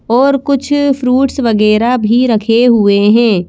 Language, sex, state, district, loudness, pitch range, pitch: Hindi, female, Madhya Pradesh, Bhopal, -11 LUFS, 220-265 Hz, 240 Hz